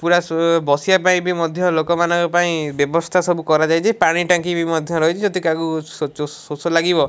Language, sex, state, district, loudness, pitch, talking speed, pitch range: Odia, male, Odisha, Malkangiri, -18 LUFS, 165 Hz, 205 wpm, 160-175 Hz